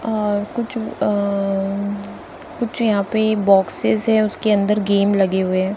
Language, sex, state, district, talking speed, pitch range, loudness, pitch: Hindi, female, Maharashtra, Mumbai Suburban, 155 wpm, 200-220 Hz, -19 LUFS, 205 Hz